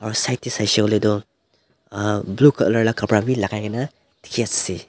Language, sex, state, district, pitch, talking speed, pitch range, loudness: Nagamese, male, Nagaland, Dimapur, 105 Hz, 160 wpm, 105-115 Hz, -20 LUFS